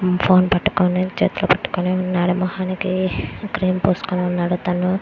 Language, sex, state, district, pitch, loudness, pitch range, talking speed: Telugu, female, Andhra Pradesh, Guntur, 185 Hz, -19 LUFS, 180-185 Hz, 85 wpm